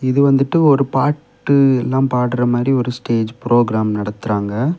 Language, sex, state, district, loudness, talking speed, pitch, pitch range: Tamil, male, Tamil Nadu, Kanyakumari, -16 LUFS, 140 wpm, 125 Hz, 115-135 Hz